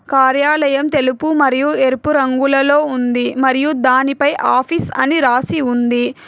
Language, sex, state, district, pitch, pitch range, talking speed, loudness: Telugu, female, Telangana, Hyderabad, 275 Hz, 255-290 Hz, 115 wpm, -14 LUFS